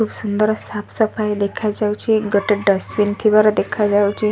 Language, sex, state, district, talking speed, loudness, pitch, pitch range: Odia, female, Odisha, Sambalpur, 125 wpm, -18 LUFS, 210 Hz, 205-215 Hz